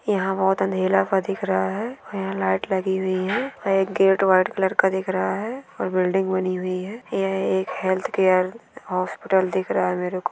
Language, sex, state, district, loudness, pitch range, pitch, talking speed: Hindi, female, Chhattisgarh, Bilaspur, -22 LUFS, 185-195 Hz, 190 Hz, 225 wpm